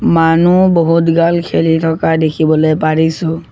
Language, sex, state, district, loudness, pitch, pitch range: Assamese, male, Assam, Sonitpur, -12 LUFS, 165 Hz, 160-170 Hz